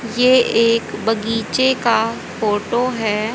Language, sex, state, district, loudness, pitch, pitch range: Hindi, female, Haryana, Rohtak, -17 LUFS, 230 Hz, 220-245 Hz